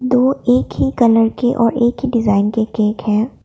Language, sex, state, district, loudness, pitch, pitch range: Hindi, female, Assam, Kamrup Metropolitan, -15 LUFS, 235 Hz, 220-250 Hz